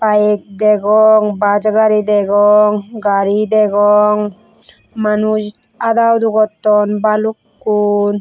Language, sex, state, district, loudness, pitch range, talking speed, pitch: Chakma, female, Tripura, West Tripura, -13 LUFS, 205-215 Hz, 90 wpm, 210 Hz